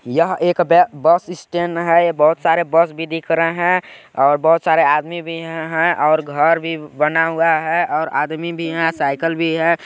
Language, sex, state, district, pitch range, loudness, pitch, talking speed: Hindi, male, Chhattisgarh, Balrampur, 160-170 Hz, -17 LUFS, 165 Hz, 195 wpm